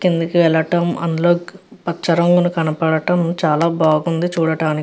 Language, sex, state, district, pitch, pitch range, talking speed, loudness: Telugu, female, Andhra Pradesh, Chittoor, 170 Hz, 160-175 Hz, 110 wpm, -17 LUFS